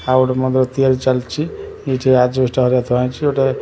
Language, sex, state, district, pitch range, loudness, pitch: Odia, male, Odisha, Khordha, 125-135 Hz, -16 LUFS, 130 Hz